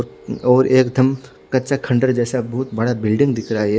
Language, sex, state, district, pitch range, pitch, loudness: Hindi, male, Odisha, Khordha, 115-130 Hz, 125 Hz, -18 LUFS